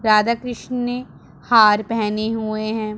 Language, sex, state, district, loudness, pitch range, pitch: Hindi, female, Punjab, Pathankot, -19 LUFS, 215-235 Hz, 220 Hz